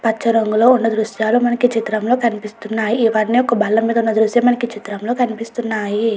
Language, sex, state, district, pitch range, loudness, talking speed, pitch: Telugu, female, Andhra Pradesh, Chittoor, 220-240 Hz, -17 LUFS, 165 wpm, 225 Hz